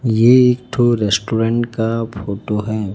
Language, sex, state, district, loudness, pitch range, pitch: Hindi, male, Chhattisgarh, Raipur, -16 LUFS, 105-120 Hz, 115 Hz